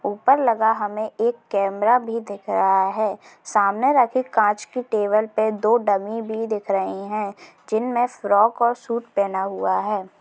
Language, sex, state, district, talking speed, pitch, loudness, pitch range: Hindi, female, Andhra Pradesh, Chittoor, 165 wpm, 215 Hz, -21 LUFS, 205-235 Hz